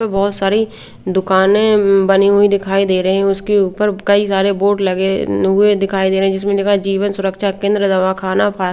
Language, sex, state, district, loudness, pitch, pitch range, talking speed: Hindi, female, Bihar, Katihar, -14 LUFS, 195 Hz, 190-200 Hz, 200 wpm